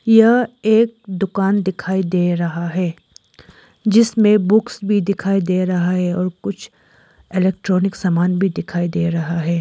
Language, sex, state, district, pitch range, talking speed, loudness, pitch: Hindi, female, Arunachal Pradesh, Lower Dibang Valley, 180-210 Hz, 135 wpm, -17 LUFS, 190 Hz